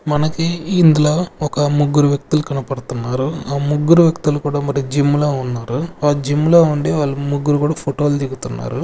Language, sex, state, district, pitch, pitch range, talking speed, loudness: Telugu, male, Andhra Pradesh, Sri Satya Sai, 145 Hz, 140-150 Hz, 165 wpm, -16 LUFS